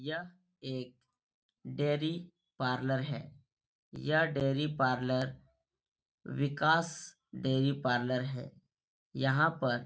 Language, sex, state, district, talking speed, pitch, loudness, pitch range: Hindi, male, Bihar, Supaul, 105 wpm, 135 Hz, -33 LUFS, 130-155 Hz